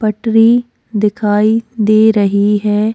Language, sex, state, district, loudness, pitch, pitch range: Hindi, female, Goa, North and South Goa, -12 LUFS, 215 Hz, 210-225 Hz